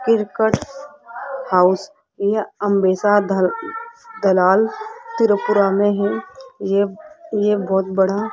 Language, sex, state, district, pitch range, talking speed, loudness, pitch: Hindi, female, Rajasthan, Jaipur, 195-285 Hz, 100 wpm, -18 LUFS, 210 Hz